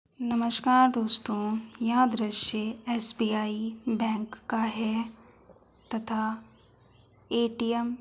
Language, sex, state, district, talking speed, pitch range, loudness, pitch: Hindi, female, Uttar Pradesh, Hamirpur, 80 wpm, 215-235 Hz, -28 LUFS, 225 Hz